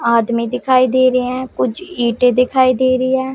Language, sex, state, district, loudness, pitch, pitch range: Hindi, female, Punjab, Pathankot, -15 LUFS, 255 Hz, 245-260 Hz